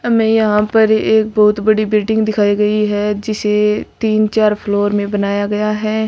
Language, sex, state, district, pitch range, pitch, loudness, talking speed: Marwari, female, Rajasthan, Churu, 210-220 Hz, 215 Hz, -14 LUFS, 180 wpm